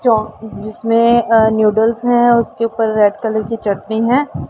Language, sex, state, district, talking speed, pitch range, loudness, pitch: Hindi, female, Punjab, Pathankot, 160 wpm, 220-235 Hz, -14 LUFS, 225 Hz